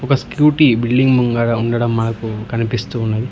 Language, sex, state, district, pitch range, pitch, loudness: Telugu, male, Telangana, Hyderabad, 115-125 Hz, 120 Hz, -16 LUFS